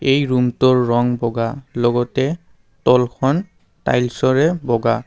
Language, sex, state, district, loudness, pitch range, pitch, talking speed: Assamese, male, Assam, Kamrup Metropolitan, -18 LUFS, 120-135 Hz, 125 Hz, 95 wpm